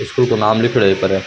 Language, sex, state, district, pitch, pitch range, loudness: Rajasthani, male, Rajasthan, Churu, 105 Hz, 95-120 Hz, -14 LUFS